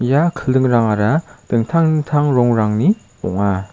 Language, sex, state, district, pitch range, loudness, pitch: Garo, male, Meghalaya, South Garo Hills, 110-150 Hz, -16 LUFS, 125 Hz